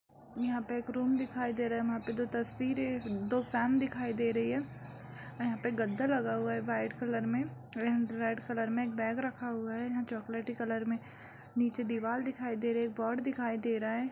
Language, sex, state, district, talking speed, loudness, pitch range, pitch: Hindi, female, Bihar, Purnia, 225 wpm, -34 LUFS, 230-245 Hz, 235 Hz